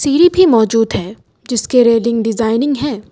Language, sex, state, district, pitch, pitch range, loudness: Hindi, female, Assam, Kamrup Metropolitan, 235 Hz, 225-280 Hz, -13 LUFS